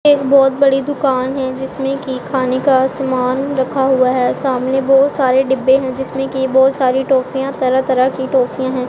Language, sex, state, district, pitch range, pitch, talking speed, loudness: Hindi, female, Punjab, Pathankot, 260-270 Hz, 265 Hz, 190 wpm, -15 LUFS